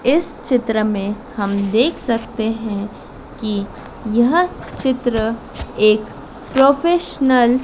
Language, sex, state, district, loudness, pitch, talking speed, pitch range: Hindi, female, Madhya Pradesh, Dhar, -18 LUFS, 230 Hz, 100 wpm, 215-260 Hz